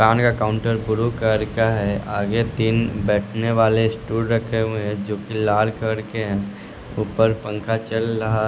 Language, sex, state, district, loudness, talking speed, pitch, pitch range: Hindi, male, Bihar, West Champaran, -21 LUFS, 150 wpm, 110 Hz, 105-115 Hz